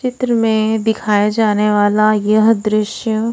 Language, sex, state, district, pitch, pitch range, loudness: Hindi, female, Odisha, Khordha, 215 Hz, 210-225 Hz, -14 LUFS